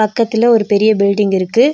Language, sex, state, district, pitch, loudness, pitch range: Tamil, female, Tamil Nadu, Nilgiris, 215 Hz, -13 LUFS, 205-230 Hz